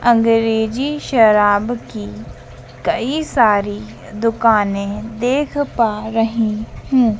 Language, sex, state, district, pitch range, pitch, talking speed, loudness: Hindi, female, Madhya Pradesh, Dhar, 205-240 Hz, 225 Hz, 85 wpm, -17 LUFS